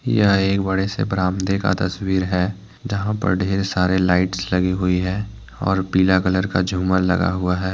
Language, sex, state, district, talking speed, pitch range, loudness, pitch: Hindi, male, Jharkhand, Deoghar, 185 wpm, 90-95 Hz, -20 LUFS, 95 Hz